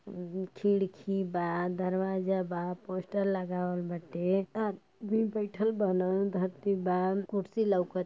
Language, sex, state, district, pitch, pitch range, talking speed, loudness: Bhojpuri, female, Uttar Pradesh, Ghazipur, 190 Hz, 180-200 Hz, 125 wpm, -32 LUFS